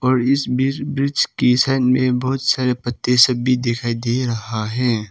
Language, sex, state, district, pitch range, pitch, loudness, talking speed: Hindi, male, Arunachal Pradesh, Papum Pare, 120-130 Hz, 125 Hz, -18 LUFS, 190 wpm